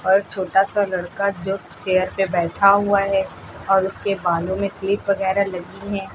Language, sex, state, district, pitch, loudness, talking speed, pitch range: Hindi, female, Uttar Pradesh, Lucknow, 195 Hz, -20 LUFS, 185 wpm, 185-200 Hz